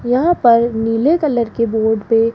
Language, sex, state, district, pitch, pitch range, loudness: Hindi, female, Rajasthan, Jaipur, 230 Hz, 225-250 Hz, -15 LUFS